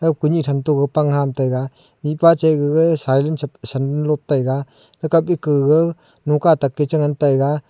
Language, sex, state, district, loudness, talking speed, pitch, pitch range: Wancho, male, Arunachal Pradesh, Longding, -18 LUFS, 185 wpm, 150 Hz, 140-155 Hz